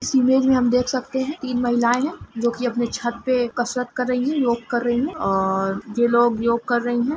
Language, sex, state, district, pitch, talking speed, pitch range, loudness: Hindi, female, Jharkhand, Sahebganj, 245 Hz, 250 wpm, 235-255 Hz, -21 LUFS